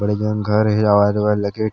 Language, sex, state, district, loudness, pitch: Chhattisgarhi, male, Chhattisgarh, Sarguja, -17 LUFS, 105 Hz